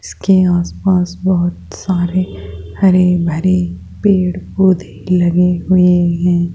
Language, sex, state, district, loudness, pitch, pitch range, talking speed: Hindi, female, Rajasthan, Jaipur, -14 LUFS, 180 Hz, 175-185 Hz, 100 wpm